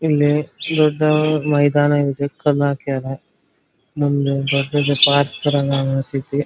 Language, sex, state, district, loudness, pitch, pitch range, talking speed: Kannada, male, Karnataka, Dharwad, -17 LUFS, 145 Hz, 140-145 Hz, 95 wpm